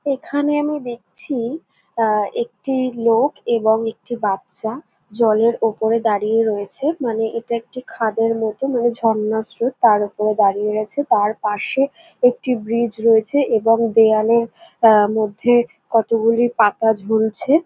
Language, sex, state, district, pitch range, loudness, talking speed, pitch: Bengali, female, West Bengal, North 24 Parganas, 220-245 Hz, -18 LUFS, 125 wpm, 230 Hz